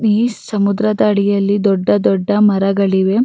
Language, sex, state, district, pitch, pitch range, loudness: Kannada, female, Karnataka, Raichur, 200 Hz, 195-210 Hz, -14 LUFS